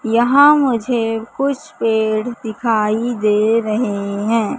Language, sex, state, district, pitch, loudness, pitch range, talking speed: Hindi, female, Madhya Pradesh, Katni, 225 Hz, -16 LUFS, 215-240 Hz, 105 wpm